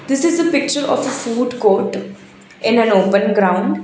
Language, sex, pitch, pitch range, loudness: English, female, 230 Hz, 200-280 Hz, -16 LUFS